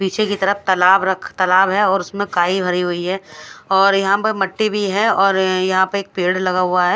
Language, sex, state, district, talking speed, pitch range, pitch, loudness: Hindi, female, Odisha, Khordha, 215 wpm, 185-200 Hz, 190 Hz, -16 LUFS